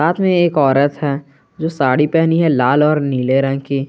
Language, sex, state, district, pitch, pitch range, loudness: Hindi, male, Jharkhand, Garhwa, 145 Hz, 135-160 Hz, -15 LUFS